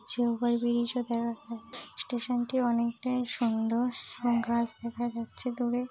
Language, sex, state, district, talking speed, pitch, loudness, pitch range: Bengali, female, West Bengal, Paschim Medinipur, 140 wpm, 240 Hz, -31 LUFS, 235-245 Hz